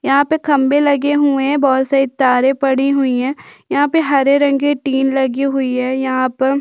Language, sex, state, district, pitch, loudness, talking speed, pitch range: Hindi, female, Chhattisgarh, Jashpur, 275 Hz, -15 LUFS, 210 wpm, 265-285 Hz